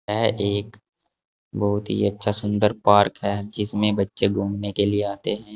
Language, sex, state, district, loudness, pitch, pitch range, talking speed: Hindi, male, Uttar Pradesh, Saharanpur, -22 LUFS, 105 Hz, 100-105 Hz, 160 wpm